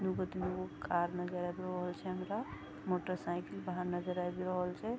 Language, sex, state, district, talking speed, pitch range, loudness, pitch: Maithili, female, Bihar, Vaishali, 190 wpm, 180-185 Hz, -39 LUFS, 180 Hz